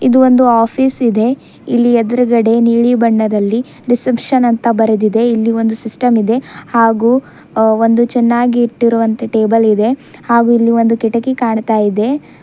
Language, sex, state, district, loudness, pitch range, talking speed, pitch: Kannada, female, Karnataka, Bidar, -12 LUFS, 225-245 Hz, 130 wpm, 230 Hz